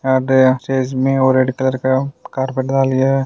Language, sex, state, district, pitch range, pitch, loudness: Hindi, male, Maharashtra, Solapur, 130-135 Hz, 130 Hz, -16 LUFS